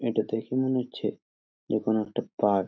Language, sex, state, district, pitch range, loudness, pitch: Bengali, male, West Bengal, Jhargram, 100-115 Hz, -29 LUFS, 110 Hz